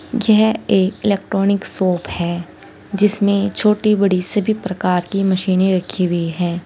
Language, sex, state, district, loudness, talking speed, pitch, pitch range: Hindi, female, Uttar Pradesh, Saharanpur, -17 LUFS, 135 wpm, 195 Hz, 180-210 Hz